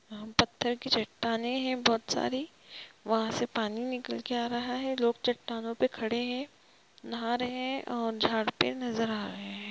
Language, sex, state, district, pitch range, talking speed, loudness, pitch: Hindi, female, Jharkhand, Jamtara, 225-250 Hz, 175 wpm, -31 LUFS, 235 Hz